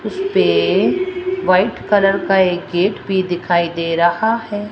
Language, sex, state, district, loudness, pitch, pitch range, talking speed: Hindi, female, Rajasthan, Jaipur, -16 LUFS, 195 Hz, 175-220 Hz, 140 wpm